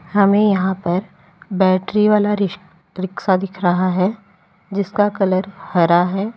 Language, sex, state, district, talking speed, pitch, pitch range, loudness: Hindi, female, Uttar Pradesh, Lalitpur, 130 wpm, 190 Hz, 185-200 Hz, -18 LUFS